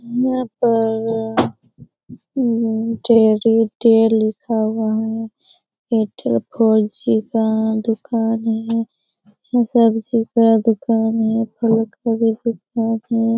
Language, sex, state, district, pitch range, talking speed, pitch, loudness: Hindi, female, Bihar, Lakhisarai, 220-230 Hz, 95 wpm, 225 Hz, -18 LUFS